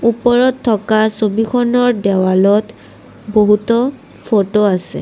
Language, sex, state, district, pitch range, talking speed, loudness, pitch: Assamese, female, Assam, Kamrup Metropolitan, 210-240 Hz, 85 wpm, -14 LUFS, 220 Hz